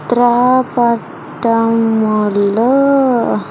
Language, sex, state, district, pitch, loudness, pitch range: Telugu, female, Andhra Pradesh, Sri Satya Sai, 235 Hz, -13 LUFS, 220-250 Hz